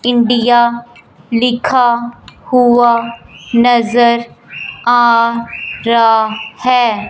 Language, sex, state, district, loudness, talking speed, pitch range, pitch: Hindi, male, Punjab, Fazilka, -12 LUFS, 60 wpm, 235-240 Hz, 235 Hz